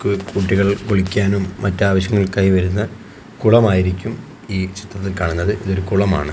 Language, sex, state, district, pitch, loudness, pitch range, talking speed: Malayalam, male, Kerala, Kozhikode, 100 Hz, -18 LUFS, 95-100 Hz, 105 wpm